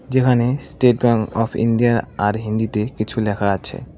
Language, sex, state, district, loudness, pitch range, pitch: Bengali, male, West Bengal, Cooch Behar, -19 LUFS, 105-120 Hz, 115 Hz